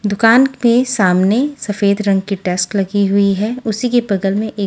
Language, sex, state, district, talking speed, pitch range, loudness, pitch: Hindi, female, Haryana, Charkhi Dadri, 195 wpm, 195-235 Hz, -15 LUFS, 205 Hz